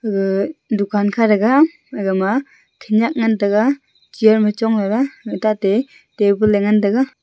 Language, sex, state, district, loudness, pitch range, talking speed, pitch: Wancho, female, Arunachal Pradesh, Longding, -17 LUFS, 205-255 Hz, 140 wpm, 215 Hz